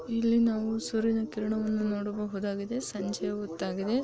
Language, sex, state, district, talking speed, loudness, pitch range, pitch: Kannada, female, Karnataka, Dharwad, 120 wpm, -30 LUFS, 205-225 Hz, 215 Hz